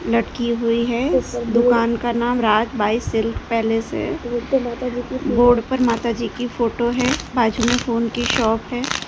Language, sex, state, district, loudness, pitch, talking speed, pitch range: Hindi, female, Gujarat, Gandhinagar, -20 LUFS, 235 Hz, 160 wpm, 230-245 Hz